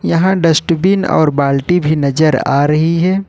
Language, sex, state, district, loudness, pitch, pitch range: Hindi, male, Jharkhand, Ranchi, -13 LUFS, 165 Hz, 150-180 Hz